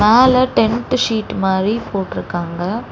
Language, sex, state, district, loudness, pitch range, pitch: Tamil, female, Tamil Nadu, Chennai, -17 LUFS, 190-240 Hz, 220 Hz